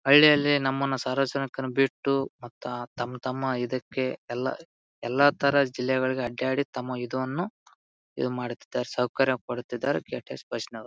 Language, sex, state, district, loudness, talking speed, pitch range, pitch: Kannada, male, Karnataka, Bijapur, -27 LUFS, 120 wpm, 125-135 Hz, 130 Hz